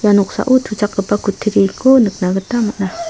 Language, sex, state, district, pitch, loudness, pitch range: Garo, female, Meghalaya, South Garo Hills, 210 Hz, -15 LUFS, 200-230 Hz